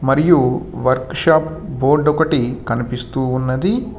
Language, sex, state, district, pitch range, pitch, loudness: Telugu, male, Telangana, Hyderabad, 130-160 Hz, 135 Hz, -17 LUFS